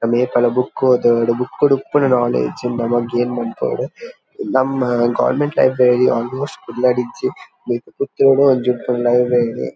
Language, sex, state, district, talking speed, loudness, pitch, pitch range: Tulu, male, Karnataka, Dakshina Kannada, 135 wpm, -17 LUFS, 125 Hz, 120-130 Hz